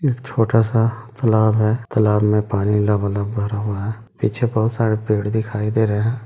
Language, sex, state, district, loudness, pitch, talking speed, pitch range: Hindi, male, Bihar, Madhepura, -19 LUFS, 110 Hz, 190 wpm, 105-115 Hz